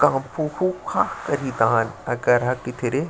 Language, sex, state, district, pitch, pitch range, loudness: Chhattisgarhi, male, Chhattisgarh, Sarguja, 135 Hz, 125-150 Hz, -23 LUFS